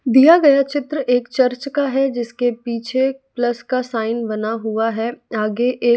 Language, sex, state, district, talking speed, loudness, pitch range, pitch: Hindi, female, Bihar, West Champaran, 170 wpm, -18 LUFS, 230-270 Hz, 245 Hz